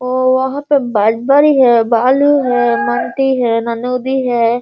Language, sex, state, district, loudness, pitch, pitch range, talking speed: Hindi, female, Bihar, Sitamarhi, -13 LUFS, 250 Hz, 235-265 Hz, 115 wpm